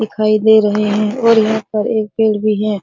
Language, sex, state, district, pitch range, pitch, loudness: Hindi, female, Bihar, Araria, 210-220 Hz, 215 Hz, -14 LUFS